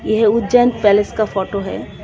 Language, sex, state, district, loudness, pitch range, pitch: Hindi, female, Tripura, West Tripura, -16 LUFS, 205-225 Hz, 215 Hz